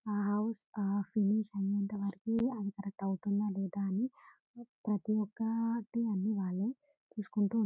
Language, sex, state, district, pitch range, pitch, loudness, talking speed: Telugu, female, Telangana, Karimnagar, 200-230 Hz, 210 Hz, -35 LUFS, 140 wpm